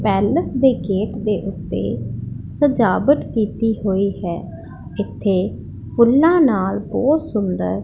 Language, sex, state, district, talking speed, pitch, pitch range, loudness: Punjabi, female, Punjab, Pathankot, 115 wpm, 200 Hz, 185-235 Hz, -19 LUFS